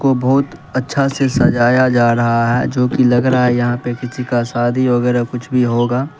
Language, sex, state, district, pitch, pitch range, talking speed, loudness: Hindi, male, Uttar Pradesh, Lalitpur, 125 Hz, 120-130 Hz, 205 wpm, -15 LUFS